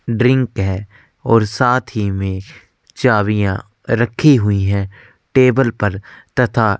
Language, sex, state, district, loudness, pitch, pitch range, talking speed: Hindi, male, Chhattisgarh, Korba, -16 LUFS, 110 Hz, 100-125 Hz, 105 wpm